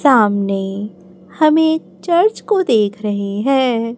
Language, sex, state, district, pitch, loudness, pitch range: Hindi, female, Chhattisgarh, Raipur, 230 Hz, -16 LUFS, 200-310 Hz